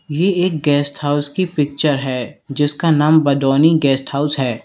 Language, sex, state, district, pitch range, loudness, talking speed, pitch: Hindi, male, Uttar Pradesh, Lalitpur, 140-160 Hz, -16 LUFS, 165 wpm, 145 Hz